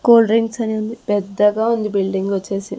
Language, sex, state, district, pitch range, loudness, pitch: Telugu, female, Andhra Pradesh, Sri Satya Sai, 195-225 Hz, -18 LUFS, 210 Hz